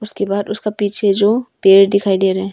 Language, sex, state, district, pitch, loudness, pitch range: Hindi, female, Arunachal Pradesh, Longding, 200 Hz, -14 LUFS, 195-210 Hz